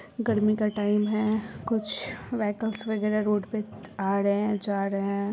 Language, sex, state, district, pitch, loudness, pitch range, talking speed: Hindi, female, Bihar, Purnia, 210 Hz, -27 LUFS, 205-215 Hz, 170 wpm